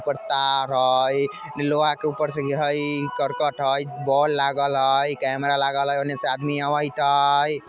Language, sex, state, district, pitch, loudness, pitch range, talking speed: Maithili, male, Bihar, Vaishali, 140 Hz, -21 LUFS, 135-145 Hz, 155 wpm